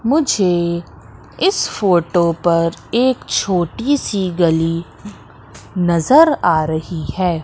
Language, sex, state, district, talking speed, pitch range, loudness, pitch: Hindi, female, Madhya Pradesh, Katni, 95 wpm, 165-205 Hz, -16 LUFS, 175 Hz